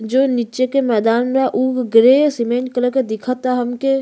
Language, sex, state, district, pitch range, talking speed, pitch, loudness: Bhojpuri, female, Uttar Pradesh, Ghazipur, 240-265 Hz, 195 wpm, 255 Hz, -16 LUFS